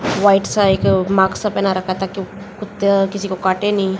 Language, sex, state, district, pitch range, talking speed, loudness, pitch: Hindi, female, Haryana, Jhajjar, 190-200 Hz, 225 wpm, -17 LUFS, 195 Hz